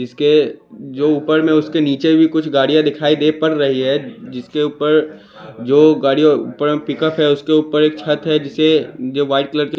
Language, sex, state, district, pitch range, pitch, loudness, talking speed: Hindi, male, Chandigarh, Chandigarh, 145-155 Hz, 150 Hz, -15 LUFS, 195 wpm